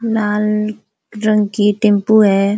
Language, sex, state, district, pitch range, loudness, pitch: Hindi, female, Uttar Pradesh, Ghazipur, 205-215 Hz, -15 LUFS, 210 Hz